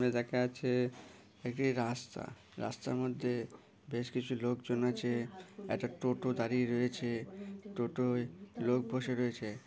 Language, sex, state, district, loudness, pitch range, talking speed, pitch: Bengali, female, West Bengal, Malda, -36 LUFS, 120-125 Hz, 120 wpm, 125 Hz